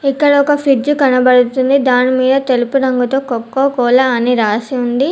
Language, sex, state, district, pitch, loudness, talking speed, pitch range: Telugu, female, Telangana, Komaram Bheem, 260 Hz, -13 LUFS, 150 wpm, 245-275 Hz